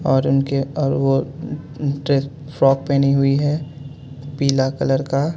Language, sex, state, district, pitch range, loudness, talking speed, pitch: Hindi, male, Jharkhand, Ranchi, 135-145 Hz, -19 LUFS, 145 wpm, 140 Hz